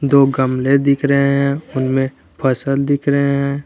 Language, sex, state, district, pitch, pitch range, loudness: Hindi, male, Jharkhand, Garhwa, 140 Hz, 135-140 Hz, -16 LUFS